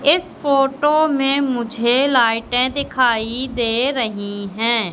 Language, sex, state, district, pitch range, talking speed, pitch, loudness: Hindi, female, Madhya Pradesh, Katni, 230-280 Hz, 110 wpm, 250 Hz, -18 LUFS